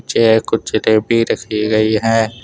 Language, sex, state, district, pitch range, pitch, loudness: Hindi, male, Jharkhand, Deoghar, 110-115 Hz, 110 Hz, -15 LUFS